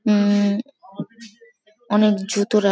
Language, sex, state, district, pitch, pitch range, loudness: Bengali, female, West Bengal, Jhargram, 210 Hz, 205-225 Hz, -19 LUFS